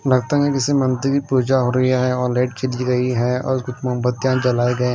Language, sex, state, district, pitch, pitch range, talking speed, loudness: Hindi, male, Himachal Pradesh, Shimla, 125 Hz, 125-130 Hz, 230 wpm, -19 LUFS